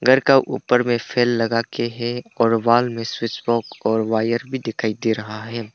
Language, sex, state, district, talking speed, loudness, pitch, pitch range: Hindi, male, Arunachal Pradesh, Papum Pare, 200 wpm, -20 LUFS, 115 Hz, 115-120 Hz